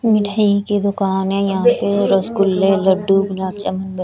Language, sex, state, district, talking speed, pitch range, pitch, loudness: Hindi, female, Chhattisgarh, Raipur, 150 wpm, 190-205 Hz, 195 Hz, -16 LUFS